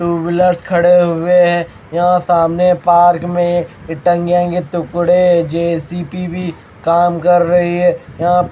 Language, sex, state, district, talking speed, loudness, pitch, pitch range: Hindi, male, Maharashtra, Mumbai Suburban, 125 wpm, -13 LUFS, 175 Hz, 170-175 Hz